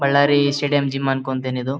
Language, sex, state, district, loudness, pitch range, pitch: Kannada, male, Karnataka, Bellary, -19 LUFS, 135-140 Hz, 140 Hz